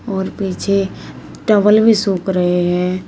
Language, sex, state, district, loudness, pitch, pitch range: Hindi, female, Uttar Pradesh, Shamli, -15 LUFS, 195 Hz, 180-210 Hz